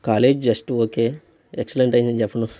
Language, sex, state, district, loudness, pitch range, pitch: Telugu, male, Andhra Pradesh, Guntur, -20 LUFS, 115-130 Hz, 120 Hz